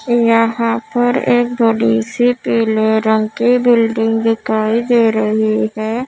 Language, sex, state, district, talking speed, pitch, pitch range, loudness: Hindi, female, Maharashtra, Mumbai Suburban, 130 wpm, 230 Hz, 220-240 Hz, -14 LUFS